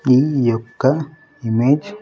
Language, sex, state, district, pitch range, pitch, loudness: Telugu, male, Andhra Pradesh, Sri Satya Sai, 120-150 Hz, 135 Hz, -18 LUFS